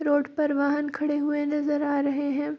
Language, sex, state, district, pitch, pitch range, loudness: Hindi, female, Bihar, Darbhanga, 290 Hz, 285-295 Hz, -26 LUFS